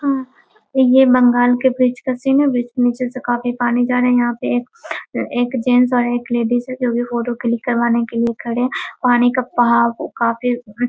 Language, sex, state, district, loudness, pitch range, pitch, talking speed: Hindi, female, Bihar, Muzaffarpur, -17 LUFS, 240-255 Hz, 245 Hz, 220 wpm